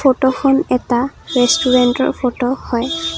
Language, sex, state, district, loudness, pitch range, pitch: Assamese, female, Assam, Kamrup Metropolitan, -16 LUFS, 245-270 Hz, 255 Hz